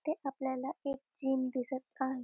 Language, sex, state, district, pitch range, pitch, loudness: Marathi, female, Maharashtra, Dhule, 260-275 Hz, 265 Hz, -37 LUFS